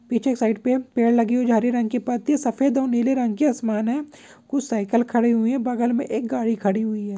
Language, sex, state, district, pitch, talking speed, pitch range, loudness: Hindi, male, Jharkhand, Sahebganj, 240 Hz, 240 wpm, 230-255 Hz, -22 LUFS